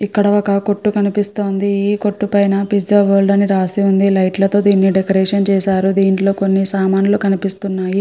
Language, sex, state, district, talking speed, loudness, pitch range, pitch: Telugu, female, Andhra Pradesh, Guntur, 155 wpm, -14 LUFS, 195-205 Hz, 200 Hz